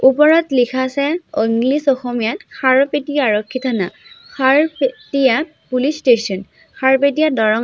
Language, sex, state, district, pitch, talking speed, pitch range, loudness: Assamese, female, Assam, Sonitpur, 265 Hz, 110 wpm, 245-295 Hz, -16 LUFS